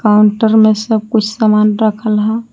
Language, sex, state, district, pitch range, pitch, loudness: Hindi, female, Jharkhand, Palamu, 210-220 Hz, 215 Hz, -12 LUFS